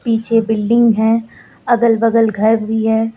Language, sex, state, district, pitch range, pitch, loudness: Hindi, female, Uttar Pradesh, Lucknow, 220-230 Hz, 225 Hz, -14 LUFS